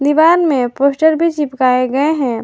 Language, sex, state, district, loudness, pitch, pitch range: Hindi, female, Jharkhand, Garhwa, -13 LUFS, 280 Hz, 255-315 Hz